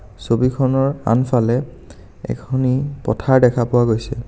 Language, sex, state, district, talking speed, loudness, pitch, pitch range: Assamese, male, Assam, Kamrup Metropolitan, 100 wpm, -18 LUFS, 125 Hz, 115-130 Hz